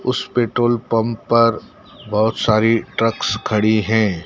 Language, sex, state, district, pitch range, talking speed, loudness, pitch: Hindi, male, Madhya Pradesh, Dhar, 110-115 Hz, 125 wpm, -17 LUFS, 115 Hz